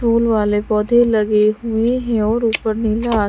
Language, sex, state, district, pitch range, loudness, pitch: Hindi, female, Bihar, Patna, 215-230 Hz, -16 LUFS, 220 Hz